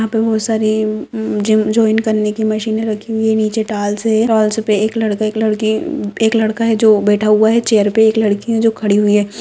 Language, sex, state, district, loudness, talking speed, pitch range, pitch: Hindi, female, Jharkhand, Sahebganj, -14 LUFS, 240 wpm, 215-220 Hz, 220 Hz